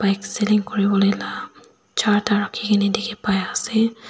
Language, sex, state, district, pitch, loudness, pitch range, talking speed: Nagamese, female, Nagaland, Dimapur, 210 Hz, -20 LUFS, 200-220 Hz, 130 wpm